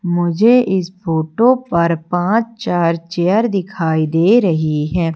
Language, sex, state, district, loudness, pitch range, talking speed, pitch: Hindi, female, Madhya Pradesh, Umaria, -15 LUFS, 165-205 Hz, 130 wpm, 175 Hz